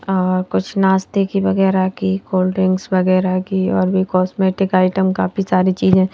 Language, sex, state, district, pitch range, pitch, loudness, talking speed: Hindi, female, Madhya Pradesh, Bhopal, 185-190 Hz, 185 Hz, -17 LUFS, 165 wpm